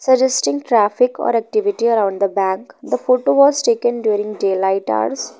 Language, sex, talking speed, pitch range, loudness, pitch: English, female, 155 wpm, 195-250 Hz, -17 LUFS, 215 Hz